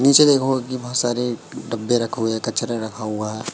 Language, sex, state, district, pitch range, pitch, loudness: Hindi, male, Madhya Pradesh, Katni, 110-125 Hz, 120 Hz, -21 LUFS